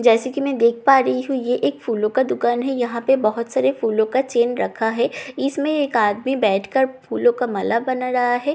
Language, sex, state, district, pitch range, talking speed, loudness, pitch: Hindi, female, Bihar, Katihar, 230-265 Hz, 240 wpm, -20 LUFS, 245 Hz